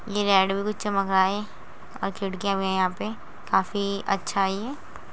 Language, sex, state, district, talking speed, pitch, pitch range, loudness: Hindi, female, Uttar Pradesh, Muzaffarnagar, 185 wpm, 195 Hz, 195-205 Hz, -25 LUFS